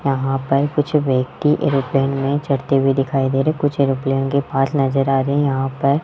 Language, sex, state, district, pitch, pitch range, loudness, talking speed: Hindi, male, Rajasthan, Jaipur, 135 Hz, 135-145 Hz, -18 LUFS, 230 wpm